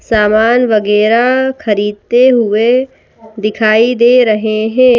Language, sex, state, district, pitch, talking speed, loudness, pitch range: Hindi, female, Madhya Pradesh, Bhopal, 225 Hz, 95 wpm, -11 LUFS, 215-245 Hz